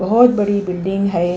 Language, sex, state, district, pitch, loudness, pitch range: Hindi, female, Uttar Pradesh, Hamirpur, 195 Hz, -16 LUFS, 185-205 Hz